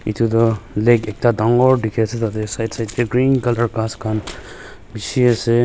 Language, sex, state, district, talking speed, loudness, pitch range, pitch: Nagamese, male, Nagaland, Dimapur, 180 wpm, -18 LUFS, 110-120 Hz, 115 Hz